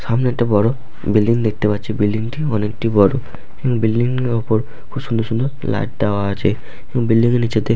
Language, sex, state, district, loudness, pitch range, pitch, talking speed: Bengali, male, West Bengal, Malda, -18 LUFS, 105-120 Hz, 115 Hz, 185 wpm